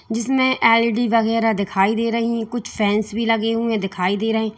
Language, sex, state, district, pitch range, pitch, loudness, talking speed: Hindi, female, Uttar Pradesh, Lalitpur, 215-230 Hz, 225 Hz, -19 LUFS, 210 wpm